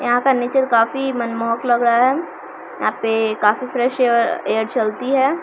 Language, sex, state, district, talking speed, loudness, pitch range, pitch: Maithili, female, Bihar, Samastipur, 165 wpm, -18 LUFS, 230-265 Hz, 245 Hz